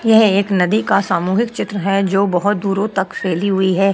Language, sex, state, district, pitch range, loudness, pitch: Hindi, female, Uttar Pradesh, Etah, 190-205 Hz, -16 LUFS, 195 Hz